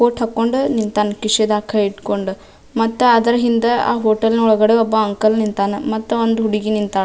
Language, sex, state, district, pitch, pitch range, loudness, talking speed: Kannada, female, Karnataka, Dharwad, 220 Hz, 210-230 Hz, -16 LUFS, 170 wpm